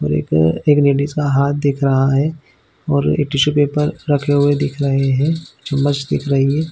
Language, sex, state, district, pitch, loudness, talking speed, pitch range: Hindi, male, Chhattisgarh, Bilaspur, 140 Hz, -16 LUFS, 205 wpm, 135-145 Hz